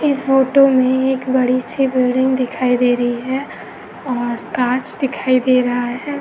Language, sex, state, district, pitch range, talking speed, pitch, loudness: Hindi, female, Uttar Pradesh, Etah, 250-265 Hz, 175 wpm, 255 Hz, -16 LUFS